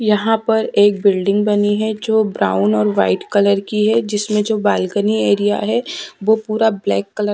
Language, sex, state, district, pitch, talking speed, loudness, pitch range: Hindi, female, Punjab, Fazilka, 210 Hz, 170 wpm, -16 LUFS, 200-220 Hz